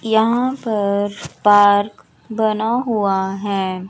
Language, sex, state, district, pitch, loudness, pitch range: Hindi, female, Chandigarh, Chandigarh, 205 Hz, -17 LUFS, 200-220 Hz